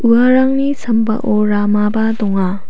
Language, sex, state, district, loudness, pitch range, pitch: Garo, female, Meghalaya, South Garo Hills, -14 LUFS, 210-240 Hz, 220 Hz